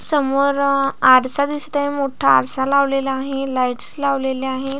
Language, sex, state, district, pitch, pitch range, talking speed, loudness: Marathi, female, Maharashtra, Pune, 275 Hz, 265-280 Hz, 150 wpm, -17 LUFS